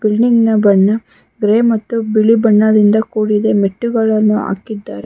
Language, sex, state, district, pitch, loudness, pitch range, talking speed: Kannada, female, Karnataka, Bangalore, 215 Hz, -13 LUFS, 210-225 Hz, 105 wpm